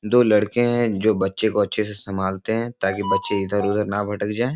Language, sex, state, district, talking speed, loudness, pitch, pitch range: Hindi, male, Bihar, Supaul, 210 wpm, -21 LUFS, 105 Hz, 100-110 Hz